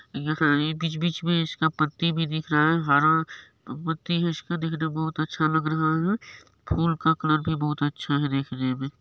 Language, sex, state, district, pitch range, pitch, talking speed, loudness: Maithili, male, Bihar, Supaul, 150-165 Hz, 155 Hz, 195 wpm, -25 LUFS